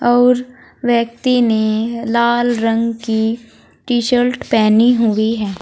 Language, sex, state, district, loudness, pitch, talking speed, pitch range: Hindi, female, Uttar Pradesh, Saharanpur, -15 LUFS, 235 Hz, 115 wpm, 225-245 Hz